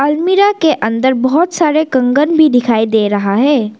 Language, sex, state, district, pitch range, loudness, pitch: Hindi, female, Arunachal Pradesh, Lower Dibang Valley, 225-315 Hz, -12 LUFS, 275 Hz